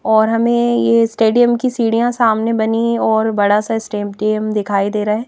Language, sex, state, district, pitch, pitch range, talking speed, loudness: Hindi, female, Madhya Pradesh, Bhopal, 225 Hz, 210-235 Hz, 180 wpm, -15 LUFS